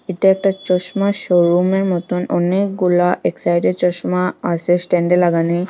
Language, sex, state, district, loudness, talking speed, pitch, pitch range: Bengali, female, Assam, Hailakandi, -17 LUFS, 125 wpm, 180 Hz, 175-190 Hz